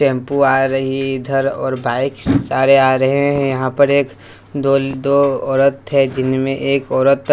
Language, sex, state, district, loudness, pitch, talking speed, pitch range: Hindi, male, Bihar, West Champaran, -15 LUFS, 135 Hz, 170 wpm, 130-140 Hz